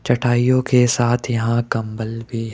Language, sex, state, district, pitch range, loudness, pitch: Hindi, male, Rajasthan, Jaipur, 115-120 Hz, -18 LUFS, 120 Hz